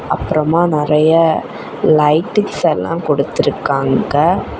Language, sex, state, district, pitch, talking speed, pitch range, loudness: Tamil, female, Tamil Nadu, Kanyakumari, 155 Hz, 65 wpm, 150-165 Hz, -14 LUFS